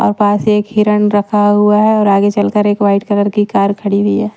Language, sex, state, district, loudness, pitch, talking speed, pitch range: Hindi, female, Haryana, Rohtak, -12 LUFS, 205 Hz, 245 wpm, 205-210 Hz